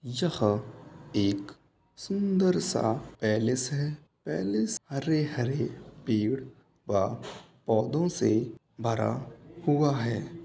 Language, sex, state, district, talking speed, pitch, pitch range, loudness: Hindi, male, Uttar Pradesh, Muzaffarnagar, 85 wpm, 135 Hz, 110-160 Hz, -29 LUFS